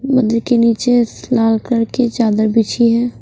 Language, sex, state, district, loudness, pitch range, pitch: Hindi, female, Punjab, Pathankot, -14 LUFS, 225-245 Hz, 235 Hz